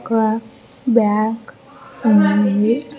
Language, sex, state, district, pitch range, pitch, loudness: Telugu, female, Andhra Pradesh, Sri Satya Sai, 210-235 Hz, 225 Hz, -17 LUFS